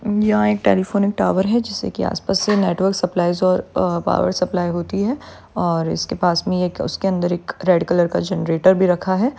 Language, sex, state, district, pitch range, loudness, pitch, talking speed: Hindi, female, Uttar Pradesh, Jyotiba Phule Nagar, 175-200 Hz, -19 LUFS, 185 Hz, 205 wpm